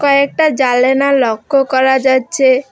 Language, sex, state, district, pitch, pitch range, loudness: Bengali, female, West Bengal, Alipurduar, 265 Hz, 260-280 Hz, -12 LUFS